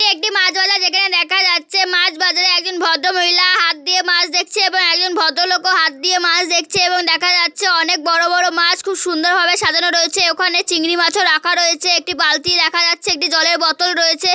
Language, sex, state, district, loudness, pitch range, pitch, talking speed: Bengali, female, West Bengal, Malda, -13 LUFS, 340-365 Hz, 355 Hz, 205 wpm